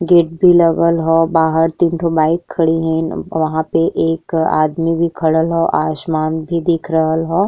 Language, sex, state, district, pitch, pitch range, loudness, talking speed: Bhojpuri, female, Uttar Pradesh, Ghazipur, 165 Hz, 160-170 Hz, -15 LUFS, 170 wpm